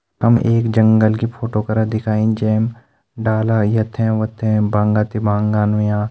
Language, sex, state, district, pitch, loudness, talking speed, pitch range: Hindi, male, Uttarakhand, Uttarkashi, 110 Hz, -17 LUFS, 135 wpm, 105-115 Hz